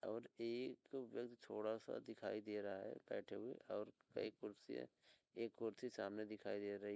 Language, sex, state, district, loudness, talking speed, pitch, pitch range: Hindi, male, Uttar Pradesh, Hamirpur, -50 LUFS, 190 wpm, 110 Hz, 105-115 Hz